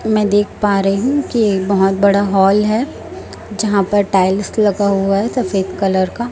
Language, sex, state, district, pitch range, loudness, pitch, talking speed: Hindi, female, Chhattisgarh, Raipur, 195-215 Hz, -15 LUFS, 200 Hz, 190 wpm